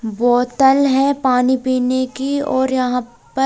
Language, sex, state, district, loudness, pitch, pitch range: Hindi, female, Bihar, Katihar, -16 LUFS, 260 Hz, 250-270 Hz